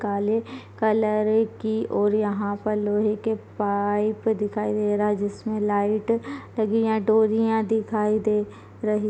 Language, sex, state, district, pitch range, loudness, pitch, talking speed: Hindi, female, Chhattisgarh, Balrampur, 210-220 Hz, -24 LUFS, 215 Hz, 140 wpm